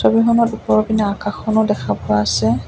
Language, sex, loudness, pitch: Assamese, female, -17 LUFS, 210 Hz